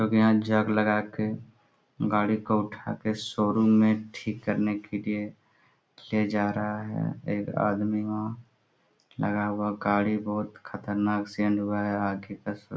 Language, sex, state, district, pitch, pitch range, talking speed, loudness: Hindi, male, Jharkhand, Sahebganj, 105 Hz, 105-110 Hz, 160 wpm, -28 LUFS